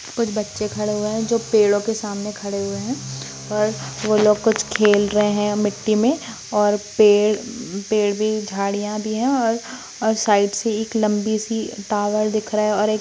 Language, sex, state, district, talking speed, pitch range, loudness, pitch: Hindi, female, Bihar, Sitamarhi, 190 wpm, 205-220 Hz, -20 LUFS, 210 Hz